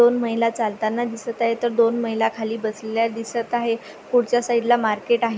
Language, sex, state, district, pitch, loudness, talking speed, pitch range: Marathi, female, Maharashtra, Pune, 230 Hz, -22 LUFS, 180 wpm, 225-235 Hz